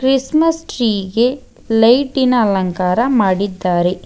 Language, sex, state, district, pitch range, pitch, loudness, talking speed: Kannada, female, Karnataka, Bangalore, 190-260 Hz, 230 Hz, -15 LUFS, 90 wpm